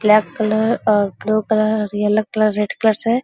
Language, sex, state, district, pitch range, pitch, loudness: Hindi, female, Bihar, Araria, 210-215 Hz, 215 Hz, -17 LUFS